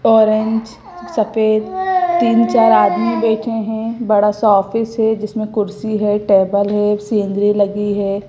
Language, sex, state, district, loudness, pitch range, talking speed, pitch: Hindi, female, Gujarat, Gandhinagar, -15 LUFS, 205-225 Hz, 140 wpm, 215 Hz